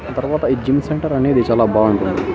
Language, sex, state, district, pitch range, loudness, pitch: Telugu, male, Andhra Pradesh, Annamaya, 110-140 Hz, -16 LUFS, 130 Hz